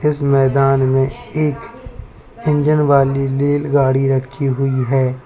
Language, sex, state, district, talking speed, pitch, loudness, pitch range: Hindi, male, Uttar Pradesh, Lalitpur, 115 wpm, 135 Hz, -16 LUFS, 135-145 Hz